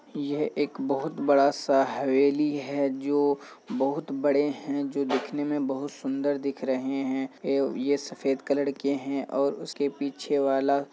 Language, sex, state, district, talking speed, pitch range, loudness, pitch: Hindi, male, Bihar, Kishanganj, 165 wpm, 135-145 Hz, -27 LUFS, 140 Hz